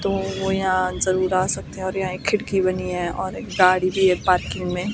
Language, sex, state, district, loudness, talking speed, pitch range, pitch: Hindi, female, Himachal Pradesh, Shimla, -21 LUFS, 240 wpm, 185-190 Hz, 185 Hz